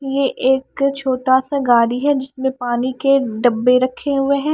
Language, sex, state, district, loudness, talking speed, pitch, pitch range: Hindi, female, Bihar, Kaimur, -17 LUFS, 170 wpm, 265 Hz, 250-275 Hz